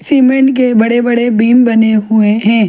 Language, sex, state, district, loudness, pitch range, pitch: Hindi, female, Chhattisgarh, Jashpur, -10 LUFS, 220-250 Hz, 235 Hz